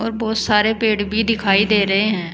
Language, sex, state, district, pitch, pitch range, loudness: Hindi, female, Uttar Pradesh, Saharanpur, 215 Hz, 205-220 Hz, -17 LUFS